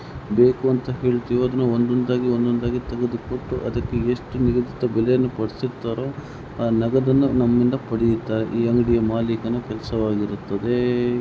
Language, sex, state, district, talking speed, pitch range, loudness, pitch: Kannada, male, Karnataka, Mysore, 65 wpm, 115-125 Hz, -22 LUFS, 120 Hz